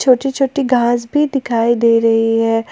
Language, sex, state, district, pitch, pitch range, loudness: Hindi, female, Jharkhand, Palamu, 240 Hz, 230-270 Hz, -14 LUFS